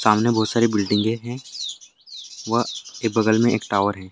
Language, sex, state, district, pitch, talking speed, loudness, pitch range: Angika, male, Bihar, Madhepura, 110 Hz, 175 wpm, -21 LUFS, 105-115 Hz